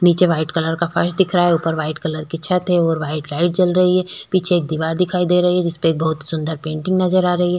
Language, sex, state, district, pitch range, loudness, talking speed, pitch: Hindi, female, Chhattisgarh, Korba, 160-180 Hz, -18 LUFS, 285 wpm, 175 Hz